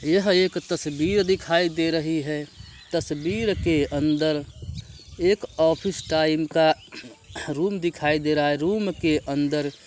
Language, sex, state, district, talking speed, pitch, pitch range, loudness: Hindi, male, Uttar Pradesh, Varanasi, 140 wpm, 160 Hz, 150-175 Hz, -23 LUFS